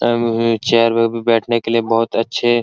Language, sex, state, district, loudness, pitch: Hindi, male, Bihar, Araria, -16 LUFS, 115 Hz